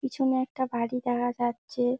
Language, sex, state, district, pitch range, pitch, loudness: Bengali, female, West Bengal, Jalpaiguri, 240-260 Hz, 245 Hz, -29 LUFS